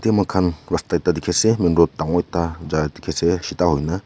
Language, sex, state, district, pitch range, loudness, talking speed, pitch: Nagamese, male, Nagaland, Kohima, 80-90 Hz, -20 LUFS, 205 wpm, 85 Hz